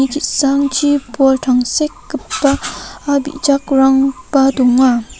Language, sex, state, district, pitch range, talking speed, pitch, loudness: Garo, female, Meghalaya, North Garo Hills, 265-285 Hz, 60 wpm, 275 Hz, -14 LUFS